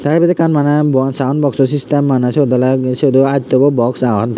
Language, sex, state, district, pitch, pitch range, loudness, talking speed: Chakma, male, Tripura, Unakoti, 135 Hz, 130-145 Hz, -13 LUFS, 235 wpm